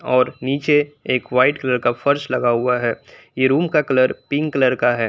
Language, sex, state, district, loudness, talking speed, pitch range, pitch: Hindi, male, Jharkhand, Palamu, -18 LUFS, 215 wpm, 125-145 Hz, 130 Hz